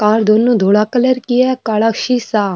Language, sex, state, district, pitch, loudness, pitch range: Rajasthani, female, Rajasthan, Nagaur, 225 Hz, -13 LUFS, 215-250 Hz